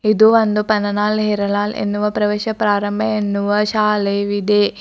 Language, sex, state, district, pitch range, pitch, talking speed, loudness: Kannada, female, Karnataka, Bidar, 205-215 Hz, 210 Hz, 110 wpm, -17 LUFS